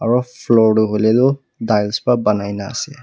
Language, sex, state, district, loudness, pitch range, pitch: Nagamese, male, Nagaland, Kohima, -16 LUFS, 105-125 Hz, 115 Hz